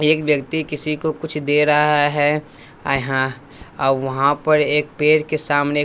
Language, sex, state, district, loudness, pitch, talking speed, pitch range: Hindi, male, Bihar, West Champaran, -18 LUFS, 150 Hz, 175 wpm, 145-150 Hz